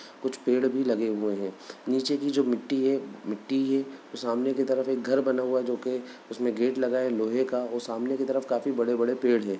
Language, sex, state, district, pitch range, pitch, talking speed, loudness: Hindi, male, Bihar, Bhagalpur, 120-135 Hz, 125 Hz, 230 wpm, -28 LUFS